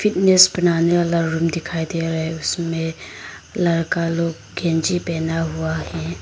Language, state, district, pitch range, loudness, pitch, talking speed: Hindi, Arunachal Pradesh, Lower Dibang Valley, 160-175 Hz, -19 LUFS, 165 Hz, 145 wpm